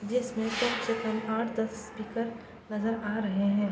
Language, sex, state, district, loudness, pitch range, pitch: Hindi, female, Bihar, East Champaran, -31 LUFS, 215-230 Hz, 220 Hz